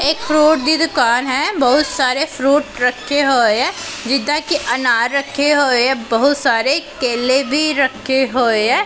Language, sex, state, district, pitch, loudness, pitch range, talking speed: Punjabi, female, Punjab, Pathankot, 275 Hz, -15 LUFS, 250-300 Hz, 155 wpm